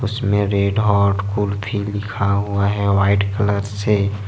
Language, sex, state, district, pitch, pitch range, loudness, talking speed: Hindi, male, Jharkhand, Ranchi, 100 Hz, 100-105 Hz, -19 LUFS, 125 wpm